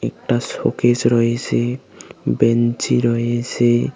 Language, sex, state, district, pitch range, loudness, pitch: Bengali, male, West Bengal, Cooch Behar, 115-120 Hz, -18 LUFS, 120 Hz